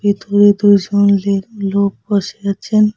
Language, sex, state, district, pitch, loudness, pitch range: Bengali, female, West Bengal, Cooch Behar, 200 Hz, -14 LUFS, 200-205 Hz